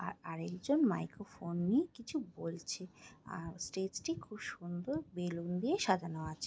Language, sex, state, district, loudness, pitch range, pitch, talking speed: Bengali, female, West Bengal, Jhargram, -38 LUFS, 170-240 Hz, 180 Hz, 140 wpm